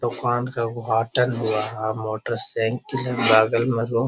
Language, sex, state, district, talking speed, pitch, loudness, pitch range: Hindi, male, Bihar, Jahanabad, 175 wpm, 115 Hz, -20 LUFS, 110-120 Hz